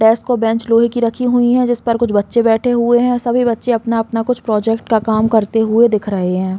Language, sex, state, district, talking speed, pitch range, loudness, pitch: Hindi, female, Uttar Pradesh, Muzaffarnagar, 235 wpm, 220-240 Hz, -15 LUFS, 230 Hz